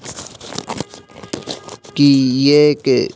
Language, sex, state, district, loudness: Hindi, male, Madhya Pradesh, Bhopal, -13 LUFS